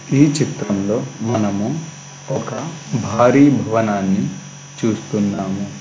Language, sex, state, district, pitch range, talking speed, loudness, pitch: Telugu, male, Andhra Pradesh, Guntur, 105-145 Hz, 70 wpm, -18 LUFS, 120 Hz